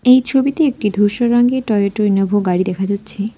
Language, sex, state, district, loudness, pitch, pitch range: Bengali, female, West Bengal, Alipurduar, -15 LUFS, 210 Hz, 200-250 Hz